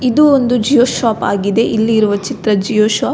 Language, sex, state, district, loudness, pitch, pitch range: Kannada, female, Karnataka, Belgaum, -13 LUFS, 225 Hz, 215-250 Hz